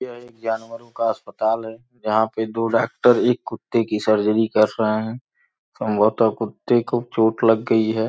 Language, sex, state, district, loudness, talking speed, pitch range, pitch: Hindi, male, Uttar Pradesh, Gorakhpur, -20 LUFS, 180 wpm, 110-115 Hz, 115 Hz